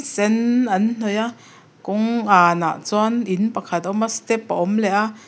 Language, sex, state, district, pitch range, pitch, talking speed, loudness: Mizo, female, Mizoram, Aizawl, 190-225 Hz, 215 Hz, 215 wpm, -19 LUFS